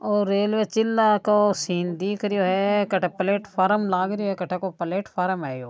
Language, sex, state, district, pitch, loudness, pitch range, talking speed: Marwari, male, Rajasthan, Nagaur, 195 Hz, -23 LUFS, 185-205 Hz, 170 wpm